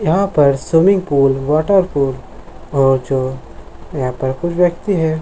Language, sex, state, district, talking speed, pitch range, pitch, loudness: Hindi, male, Jharkhand, Jamtara, 140 wpm, 135-175 Hz, 145 Hz, -15 LUFS